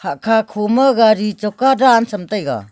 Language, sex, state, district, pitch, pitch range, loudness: Wancho, female, Arunachal Pradesh, Longding, 215 Hz, 210-235 Hz, -15 LUFS